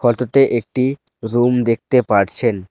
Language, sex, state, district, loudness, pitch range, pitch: Bengali, male, West Bengal, Alipurduar, -16 LUFS, 115-125 Hz, 120 Hz